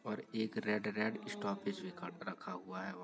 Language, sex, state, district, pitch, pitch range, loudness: Hindi, male, Uttar Pradesh, Varanasi, 105 Hz, 95-105 Hz, -41 LUFS